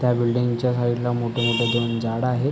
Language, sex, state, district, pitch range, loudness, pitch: Marathi, male, Maharashtra, Sindhudurg, 120-125 Hz, -22 LUFS, 120 Hz